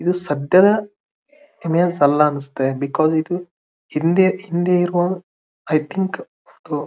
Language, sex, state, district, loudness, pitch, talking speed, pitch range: Kannada, male, Karnataka, Dharwad, -18 LUFS, 175 Hz, 105 wpm, 150-190 Hz